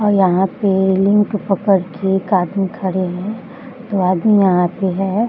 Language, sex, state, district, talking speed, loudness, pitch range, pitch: Hindi, female, Bihar, Bhagalpur, 180 wpm, -16 LUFS, 185-210 Hz, 195 Hz